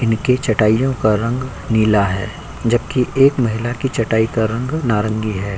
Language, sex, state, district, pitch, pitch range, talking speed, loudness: Hindi, male, Uttar Pradesh, Jyotiba Phule Nagar, 115 Hz, 110-125 Hz, 160 wpm, -17 LUFS